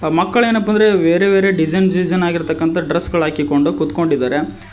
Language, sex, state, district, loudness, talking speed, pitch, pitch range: Kannada, male, Karnataka, Koppal, -15 LUFS, 150 wpm, 170 Hz, 160-190 Hz